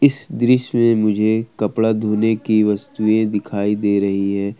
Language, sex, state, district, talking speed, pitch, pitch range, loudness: Hindi, male, Jharkhand, Ranchi, 155 wpm, 110 Hz, 105-115 Hz, -18 LUFS